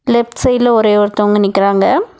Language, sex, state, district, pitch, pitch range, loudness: Tamil, female, Tamil Nadu, Nilgiris, 225 Hz, 205-245 Hz, -12 LUFS